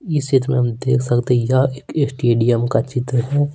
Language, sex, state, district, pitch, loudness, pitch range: Hindi, male, Bihar, Patna, 130 Hz, -18 LUFS, 120-140 Hz